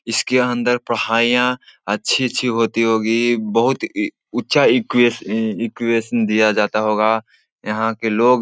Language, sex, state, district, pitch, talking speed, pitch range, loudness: Hindi, male, Bihar, Jahanabad, 115 Hz, 130 wpm, 110-125 Hz, -18 LUFS